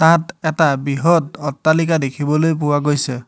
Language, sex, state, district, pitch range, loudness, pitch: Assamese, male, Assam, Hailakandi, 145-160 Hz, -17 LUFS, 150 Hz